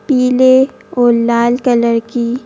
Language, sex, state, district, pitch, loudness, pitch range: Hindi, female, Madhya Pradesh, Bhopal, 245 Hz, -12 LUFS, 235-255 Hz